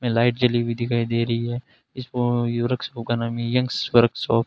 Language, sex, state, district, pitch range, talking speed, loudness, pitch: Hindi, male, Rajasthan, Bikaner, 115-125 Hz, 190 wpm, -22 LUFS, 120 Hz